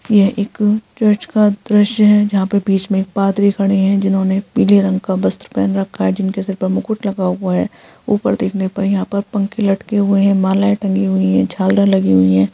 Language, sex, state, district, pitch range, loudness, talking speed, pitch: Hindi, female, Chhattisgarh, Bilaspur, 190-205 Hz, -15 LUFS, 220 wpm, 195 Hz